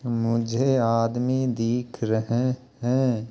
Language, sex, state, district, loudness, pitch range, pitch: Hindi, male, Uttar Pradesh, Jalaun, -24 LUFS, 115-125 Hz, 120 Hz